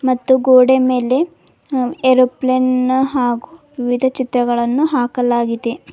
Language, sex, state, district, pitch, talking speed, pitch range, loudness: Kannada, female, Karnataka, Bidar, 255 Hz, 100 wpm, 245-260 Hz, -15 LUFS